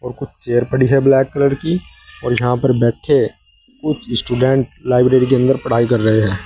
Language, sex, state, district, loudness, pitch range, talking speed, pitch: Hindi, male, Uttar Pradesh, Saharanpur, -15 LUFS, 120-135 Hz, 195 wpm, 125 Hz